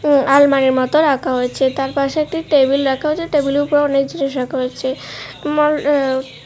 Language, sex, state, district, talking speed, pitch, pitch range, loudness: Bengali, female, Tripura, West Tripura, 175 wpm, 280 Hz, 265-295 Hz, -16 LUFS